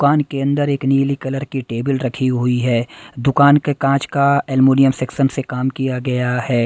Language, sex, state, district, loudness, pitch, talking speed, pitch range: Hindi, male, Punjab, Pathankot, -17 LUFS, 135 Hz, 200 wpm, 125-140 Hz